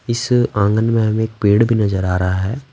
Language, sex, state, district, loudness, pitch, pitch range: Hindi, male, Bihar, Patna, -16 LUFS, 110 Hz, 100-115 Hz